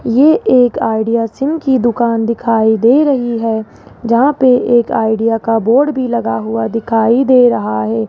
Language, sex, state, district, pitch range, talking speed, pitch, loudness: Hindi, female, Rajasthan, Jaipur, 225-250 Hz, 170 wpm, 235 Hz, -13 LUFS